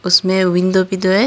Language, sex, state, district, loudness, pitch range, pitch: Hindi, female, Tripura, Dhalai, -14 LUFS, 185-190 Hz, 185 Hz